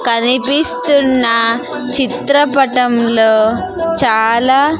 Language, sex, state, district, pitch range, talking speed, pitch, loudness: Telugu, female, Andhra Pradesh, Sri Satya Sai, 230-280 Hz, 35 wpm, 250 Hz, -12 LUFS